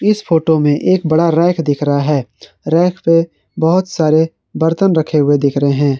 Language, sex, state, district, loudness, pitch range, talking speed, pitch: Hindi, male, Jharkhand, Garhwa, -14 LUFS, 145-170 Hz, 190 wpm, 160 Hz